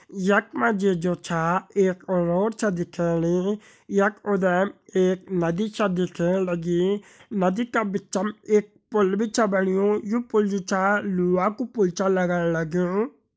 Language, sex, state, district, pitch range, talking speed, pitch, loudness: Hindi, male, Uttarakhand, Uttarkashi, 180-210 Hz, 150 wpm, 195 Hz, -24 LUFS